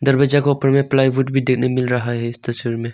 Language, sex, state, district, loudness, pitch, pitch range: Hindi, male, Arunachal Pradesh, Longding, -17 LUFS, 130 Hz, 120-135 Hz